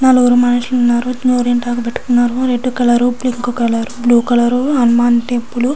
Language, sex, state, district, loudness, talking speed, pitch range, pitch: Telugu, female, Andhra Pradesh, Srikakulam, -14 LUFS, 135 wpm, 240-250 Hz, 245 Hz